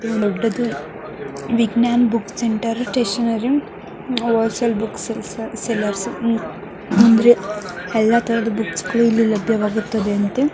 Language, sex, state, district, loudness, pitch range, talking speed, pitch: Kannada, male, Karnataka, Mysore, -19 LUFS, 215-235 Hz, 70 wpm, 225 Hz